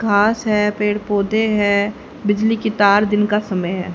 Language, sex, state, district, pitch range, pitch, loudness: Hindi, female, Haryana, Rohtak, 205-215 Hz, 210 Hz, -17 LUFS